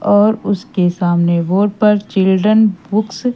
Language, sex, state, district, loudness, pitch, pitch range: Hindi, female, Madhya Pradesh, Umaria, -14 LUFS, 205 Hz, 185-215 Hz